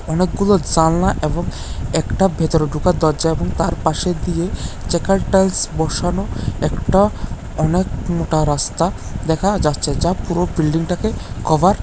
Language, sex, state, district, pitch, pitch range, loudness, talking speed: Bengali, male, Tripura, West Tripura, 165 Hz, 155-180 Hz, -18 LUFS, 130 wpm